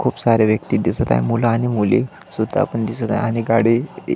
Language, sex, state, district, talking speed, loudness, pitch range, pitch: Marathi, male, Maharashtra, Solapur, 215 wpm, -18 LUFS, 110-115 Hz, 115 Hz